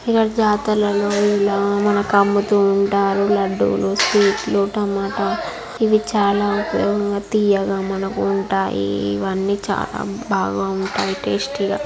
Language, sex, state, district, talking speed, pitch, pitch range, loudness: Telugu, female, Andhra Pradesh, Guntur, 110 wpm, 200 Hz, 195-205 Hz, -19 LUFS